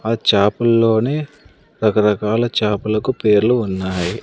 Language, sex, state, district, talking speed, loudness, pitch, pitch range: Telugu, male, Andhra Pradesh, Sri Satya Sai, 85 wpm, -17 LUFS, 110 Hz, 105-115 Hz